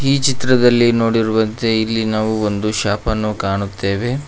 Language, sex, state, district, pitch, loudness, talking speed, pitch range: Kannada, male, Karnataka, Koppal, 110 Hz, -17 LUFS, 110 wpm, 105-120 Hz